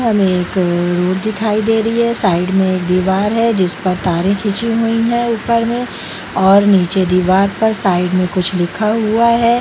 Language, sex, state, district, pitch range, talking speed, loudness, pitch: Hindi, female, Bihar, Jamui, 185-225 Hz, 200 wpm, -14 LUFS, 200 Hz